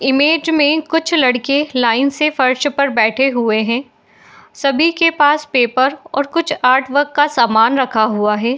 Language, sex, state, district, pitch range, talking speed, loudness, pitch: Hindi, female, Bihar, Madhepura, 245-295 Hz, 170 wpm, -14 LUFS, 275 Hz